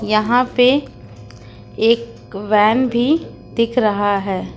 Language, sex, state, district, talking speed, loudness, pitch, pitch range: Hindi, female, Uttar Pradesh, Lucknow, 105 wpm, -16 LUFS, 215 Hz, 195-240 Hz